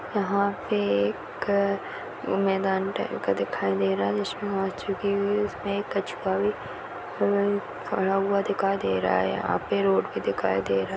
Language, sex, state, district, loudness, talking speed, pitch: Hindi, female, Chhattisgarh, Jashpur, -26 LUFS, 145 wpm, 195 Hz